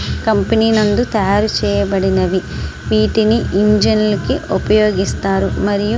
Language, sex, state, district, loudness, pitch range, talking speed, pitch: Telugu, female, Andhra Pradesh, Srikakulam, -15 LUFS, 190-215 Hz, 100 wpm, 205 Hz